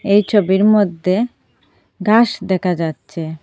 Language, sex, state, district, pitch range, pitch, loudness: Bengali, female, Assam, Hailakandi, 160-205 Hz, 185 Hz, -16 LUFS